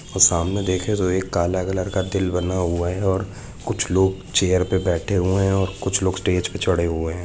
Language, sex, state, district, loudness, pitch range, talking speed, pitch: Hindi, male, Jharkhand, Jamtara, -21 LUFS, 90-95 Hz, 230 wpm, 95 Hz